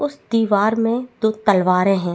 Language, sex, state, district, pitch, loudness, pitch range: Hindi, female, Chhattisgarh, Bastar, 220 Hz, -18 LUFS, 195-230 Hz